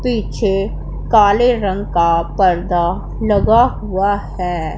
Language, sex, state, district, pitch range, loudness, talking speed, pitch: Hindi, female, Punjab, Pathankot, 175-215 Hz, -16 LUFS, 100 wpm, 195 Hz